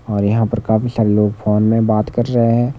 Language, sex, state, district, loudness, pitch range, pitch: Hindi, male, Himachal Pradesh, Shimla, -16 LUFS, 105-115 Hz, 110 Hz